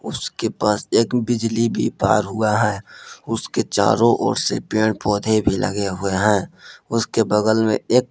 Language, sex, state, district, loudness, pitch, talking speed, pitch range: Hindi, male, Jharkhand, Palamu, -19 LUFS, 110 Hz, 160 wpm, 105-115 Hz